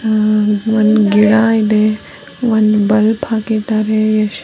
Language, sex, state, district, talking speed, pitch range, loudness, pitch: Kannada, female, Karnataka, Dharwad, 80 wpm, 215-220 Hz, -13 LUFS, 215 Hz